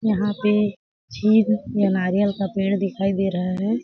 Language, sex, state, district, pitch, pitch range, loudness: Hindi, female, Chhattisgarh, Sarguja, 200 Hz, 195-210 Hz, -21 LUFS